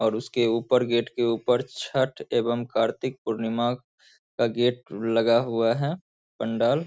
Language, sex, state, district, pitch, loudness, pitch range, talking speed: Hindi, male, Bihar, Saharsa, 120 Hz, -25 LUFS, 115-125 Hz, 140 wpm